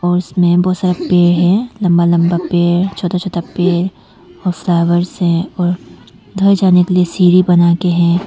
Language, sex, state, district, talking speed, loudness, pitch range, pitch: Hindi, female, Arunachal Pradesh, Longding, 175 wpm, -13 LUFS, 175-180 Hz, 175 Hz